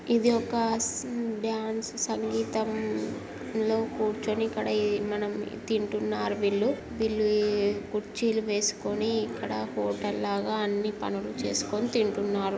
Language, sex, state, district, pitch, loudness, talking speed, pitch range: Telugu, female, Telangana, Karimnagar, 215 Hz, -29 LUFS, 100 wpm, 205-225 Hz